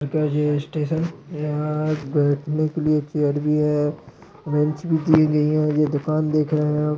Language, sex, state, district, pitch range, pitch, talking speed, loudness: Hindi, male, Chhattisgarh, Raigarh, 150-155 Hz, 150 Hz, 190 wpm, -21 LUFS